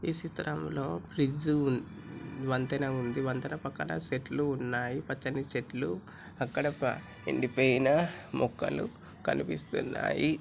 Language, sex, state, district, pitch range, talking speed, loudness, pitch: Telugu, male, Telangana, Nalgonda, 125-140 Hz, 110 wpm, -32 LUFS, 135 Hz